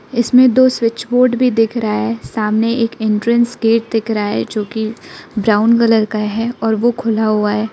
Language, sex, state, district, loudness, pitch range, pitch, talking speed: Hindi, female, Arunachal Pradesh, Lower Dibang Valley, -15 LUFS, 215-235 Hz, 225 Hz, 200 wpm